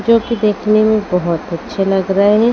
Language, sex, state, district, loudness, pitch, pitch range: Hindi, female, Haryana, Rohtak, -15 LUFS, 210 Hz, 190-220 Hz